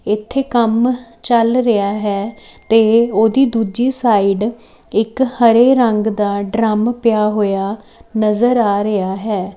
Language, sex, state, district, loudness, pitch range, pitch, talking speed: Punjabi, female, Chandigarh, Chandigarh, -15 LUFS, 210-235 Hz, 220 Hz, 125 wpm